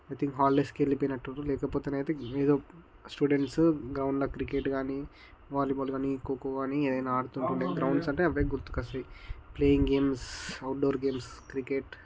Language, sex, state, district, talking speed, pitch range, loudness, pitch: Telugu, male, Telangana, Karimnagar, 120 wpm, 135-140 Hz, -31 LUFS, 135 Hz